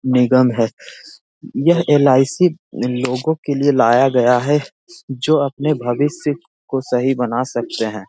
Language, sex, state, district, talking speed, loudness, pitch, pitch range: Hindi, male, Bihar, Jamui, 135 wpm, -17 LUFS, 135 Hz, 125-145 Hz